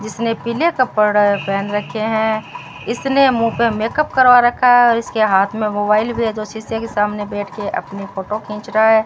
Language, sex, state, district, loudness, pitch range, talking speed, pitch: Hindi, female, Rajasthan, Bikaner, -16 LUFS, 210-235 Hz, 190 wpm, 220 Hz